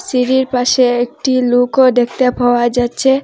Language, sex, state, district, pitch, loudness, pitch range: Bengali, female, Assam, Hailakandi, 250 Hz, -13 LUFS, 245-260 Hz